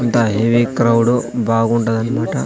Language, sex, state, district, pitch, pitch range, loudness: Telugu, male, Andhra Pradesh, Sri Satya Sai, 115 Hz, 115-120 Hz, -16 LUFS